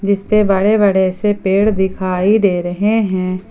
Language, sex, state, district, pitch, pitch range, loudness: Hindi, female, Jharkhand, Ranchi, 195 Hz, 185-210 Hz, -14 LUFS